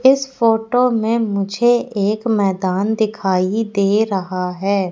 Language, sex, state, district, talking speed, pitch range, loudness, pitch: Hindi, female, Madhya Pradesh, Katni, 120 wpm, 195-230 Hz, -17 LUFS, 215 Hz